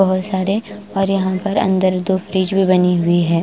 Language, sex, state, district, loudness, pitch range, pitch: Hindi, female, Bihar, Patna, -17 LUFS, 185-195 Hz, 190 Hz